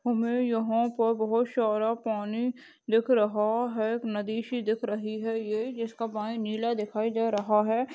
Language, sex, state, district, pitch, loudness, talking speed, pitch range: Hindi, female, Chhattisgarh, Balrampur, 225 Hz, -28 LUFS, 165 wpm, 215-235 Hz